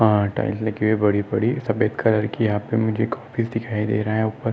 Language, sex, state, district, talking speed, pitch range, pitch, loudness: Hindi, male, Maharashtra, Nagpur, 250 wpm, 105-115 Hz, 110 Hz, -22 LUFS